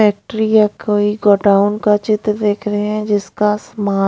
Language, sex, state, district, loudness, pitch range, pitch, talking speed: Hindi, female, Punjab, Pathankot, -15 LUFS, 205-210 Hz, 210 Hz, 160 wpm